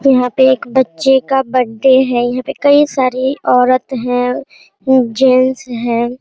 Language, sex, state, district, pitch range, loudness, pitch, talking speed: Hindi, female, Bihar, Araria, 245-265 Hz, -13 LUFS, 255 Hz, 145 wpm